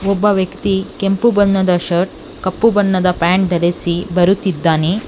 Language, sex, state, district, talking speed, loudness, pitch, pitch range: Kannada, female, Karnataka, Bangalore, 120 wpm, -15 LUFS, 185 Hz, 175-195 Hz